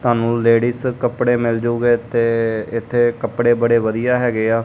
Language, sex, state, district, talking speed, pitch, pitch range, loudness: Punjabi, male, Punjab, Kapurthala, 155 wpm, 120 Hz, 115-120 Hz, -17 LUFS